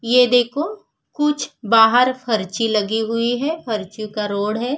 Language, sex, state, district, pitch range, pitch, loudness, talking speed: Hindi, female, Bihar, Vaishali, 215-260 Hz, 235 Hz, -19 LUFS, 150 wpm